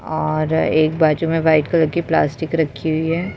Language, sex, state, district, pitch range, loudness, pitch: Hindi, female, Maharashtra, Mumbai Suburban, 155-165 Hz, -18 LUFS, 160 Hz